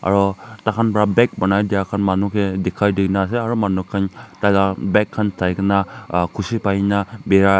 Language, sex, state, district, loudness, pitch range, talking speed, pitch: Nagamese, male, Nagaland, Kohima, -19 LUFS, 95-105 Hz, 215 wpm, 100 Hz